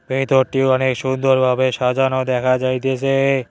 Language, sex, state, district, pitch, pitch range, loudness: Bengali, male, West Bengal, Cooch Behar, 130 Hz, 130-135 Hz, -17 LUFS